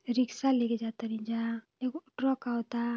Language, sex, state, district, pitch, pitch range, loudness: Hindi, female, Uttar Pradesh, Ghazipur, 235 Hz, 230-255 Hz, -32 LUFS